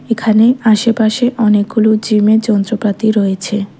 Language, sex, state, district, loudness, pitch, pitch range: Bengali, female, Tripura, West Tripura, -12 LUFS, 215 Hz, 210-225 Hz